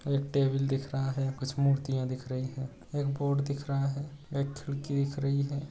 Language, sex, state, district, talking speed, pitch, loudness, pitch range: Hindi, male, Uttar Pradesh, Budaun, 220 wpm, 140 Hz, -32 LUFS, 135-140 Hz